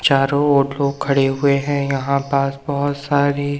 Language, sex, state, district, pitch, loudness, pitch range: Hindi, male, Madhya Pradesh, Umaria, 140 Hz, -18 LUFS, 140-145 Hz